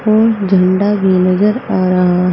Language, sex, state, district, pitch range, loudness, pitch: Hindi, female, Uttar Pradesh, Saharanpur, 185-210 Hz, -12 LUFS, 190 Hz